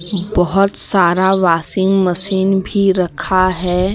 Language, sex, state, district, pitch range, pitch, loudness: Hindi, female, Jharkhand, Deoghar, 180-195 Hz, 190 Hz, -14 LUFS